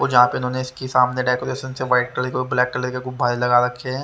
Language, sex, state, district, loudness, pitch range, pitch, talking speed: Hindi, male, Haryana, Rohtak, -20 LUFS, 125-130 Hz, 125 Hz, 250 wpm